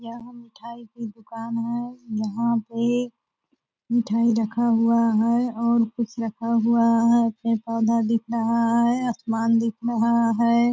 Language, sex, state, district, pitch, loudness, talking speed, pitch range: Hindi, female, Bihar, Purnia, 230 Hz, -22 LUFS, 135 wpm, 230-235 Hz